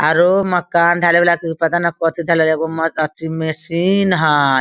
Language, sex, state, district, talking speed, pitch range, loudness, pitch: Hindi, female, Bihar, Sitamarhi, 170 wpm, 160-175 Hz, -16 LUFS, 165 Hz